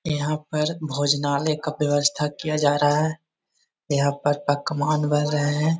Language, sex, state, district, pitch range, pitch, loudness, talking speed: Magahi, male, Bihar, Jahanabad, 145-155 Hz, 150 Hz, -23 LUFS, 175 wpm